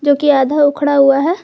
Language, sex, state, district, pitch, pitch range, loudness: Hindi, female, Jharkhand, Garhwa, 290 Hz, 280-295 Hz, -12 LUFS